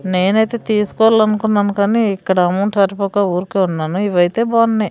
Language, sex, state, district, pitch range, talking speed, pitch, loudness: Telugu, female, Andhra Pradesh, Sri Satya Sai, 190-220 Hz, 120 wpm, 200 Hz, -15 LUFS